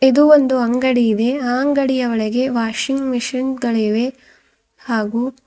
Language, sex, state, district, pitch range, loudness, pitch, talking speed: Kannada, female, Karnataka, Bidar, 235-265 Hz, -17 LUFS, 255 Hz, 120 wpm